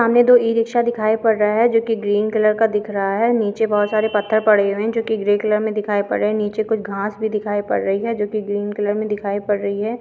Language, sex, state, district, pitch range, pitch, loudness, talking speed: Hindi, female, Uttarakhand, Uttarkashi, 205-225 Hz, 215 Hz, -18 LUFS, 275 wpm